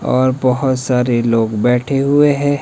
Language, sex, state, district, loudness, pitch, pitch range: Hindi, male, Himachal Pradesh, Shimla, -15 LUFS, 130 Hz, 125-140 Hz